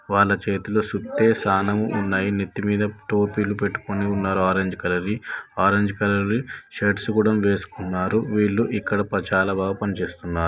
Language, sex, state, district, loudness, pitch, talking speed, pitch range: Telugu, male, Telangana, Nalgonda, -22 LUFS, 100 Hz, 145 wpm, 95-105 Hz